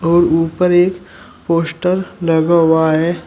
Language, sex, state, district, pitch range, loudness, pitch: Hindi, male, Uttar Pradesh, Shamli, 165-180 Hz, -14 LUFS, 170 Hz